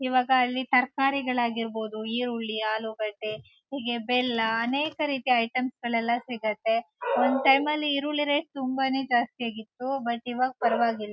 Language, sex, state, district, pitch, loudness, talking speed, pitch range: Kannada, female, Karnataka, Shimoga, 245 Hz, -27 LUFS, 120 wpm, 230-270 Hz